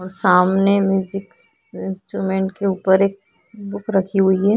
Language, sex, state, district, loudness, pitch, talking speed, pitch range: Hindi, female, Uttarakhand, Tehri Garhwal, -18 LUFS, 195 Hz, 145 wpm, 190-200 Hz